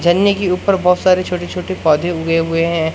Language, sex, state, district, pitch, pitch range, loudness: Hindi, male, Madhya Pradesh, Katni, 180 Hz, 165-185 Hz, -15 LUFS